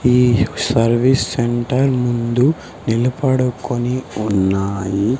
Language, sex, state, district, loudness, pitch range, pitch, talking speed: Telugu, male, Andhra Pradesh, Sri Satya Sai, -17 LUFS, 110-125 Hz, 120 Hz, 70 wpm